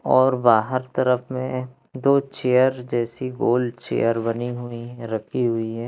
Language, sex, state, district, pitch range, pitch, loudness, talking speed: Hindi, male, Madhya Pradesh, Katni, 115-130 Hz, 125 Hz, -22 LUFS, 145 wpm